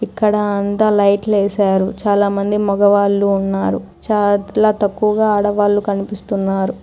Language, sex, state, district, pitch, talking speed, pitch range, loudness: Telugu, female, Telangana, Hyderabad, 205 Hz, 95 wpm, 200-210 Hz, -16 LUFS